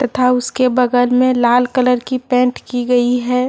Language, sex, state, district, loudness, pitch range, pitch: Hindi, female, Jharkhand, Deoghar, -15 LUFS, 245-255 Hz, 250 Hz